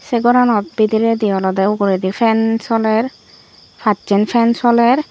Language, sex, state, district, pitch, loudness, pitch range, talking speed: Chakma, female, Tripura, Unakoti, 225 Hz, -15 LUFS, 205-235 Hz, 120 wpm